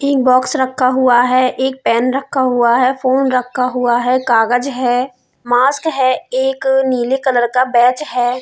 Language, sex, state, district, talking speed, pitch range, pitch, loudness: Hindi, female, Uttar Pradesh, Hamirpur, 165 wpm, 245-265 Hz, 255 Hz, -14 LUFS